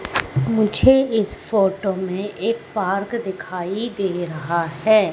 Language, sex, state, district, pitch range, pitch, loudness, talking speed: Hindi, female, Madhya Pradesh, Katni, 180-220 Hz, 195 Hz, -20 LUFS, 115 wpm